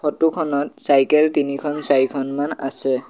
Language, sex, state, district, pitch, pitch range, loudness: Assamese, male, Assam, Sonitpur, 145 Hz, 135-150 Hz, -17 LUFS